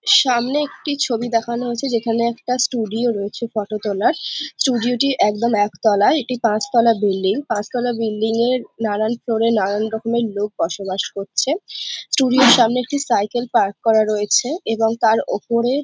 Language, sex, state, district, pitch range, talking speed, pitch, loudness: Bengali, female, West Bengal, Jhargram, 215-250 Hz, 150 wpm, 230 Hz, -19 LUFS